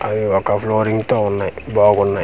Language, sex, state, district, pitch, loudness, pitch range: Telugu, male, Andhra Pradesh, Manyam, 105 Hz, -17 LUFS, 100-110 Hz